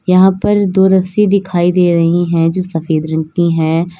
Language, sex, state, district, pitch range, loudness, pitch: Hindi, female, Uttar Pradesh, Lalitpur, 165-190 Hz, -12 LUFS, 175 Hz